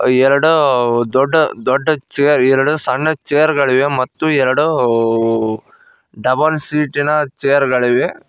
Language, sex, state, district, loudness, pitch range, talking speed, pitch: Kannada, male, Karnataka, Koppal, -14 LUFS, 130-150 Hz, 85 wpm, 140 Hz